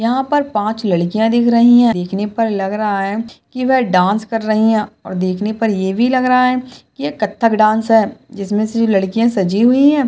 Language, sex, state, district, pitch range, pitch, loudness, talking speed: Hindi, female, Maharashtra, Solapur, 205-235 Hz, 220 Hz, -15 LUFS, 215 wpm